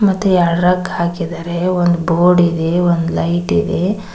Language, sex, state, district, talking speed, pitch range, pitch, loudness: Kannada, female, Karnataka, Koppal, 145 wpm, 170-180 Hz, 175 Hz, -15 LUFS